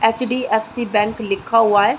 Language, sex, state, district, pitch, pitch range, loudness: Hindi, female, Uttar Pradesh, Muzaffarnagar, 220 Hz, 210-235 Hz, -18 LUFS